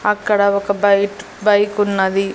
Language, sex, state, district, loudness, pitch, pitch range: Telugu, female, Andhra Pradesh, Annamaya, -16 LUFS, 200 Hz, 200-205 Hz